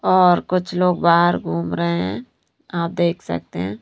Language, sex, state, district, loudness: Hindi, female, Bihar, Katihar, -19 LUFS